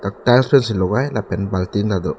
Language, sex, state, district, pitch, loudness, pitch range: Karbi, male, Assam, Karbi Anglong, 100 Hz, -18 LUFS, 95-120 Hz